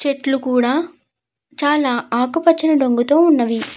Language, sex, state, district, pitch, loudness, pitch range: Telugu, female, Andhra Pradesh, Chittoor, 280 Hz, -16 LUFS, 250-310 Hz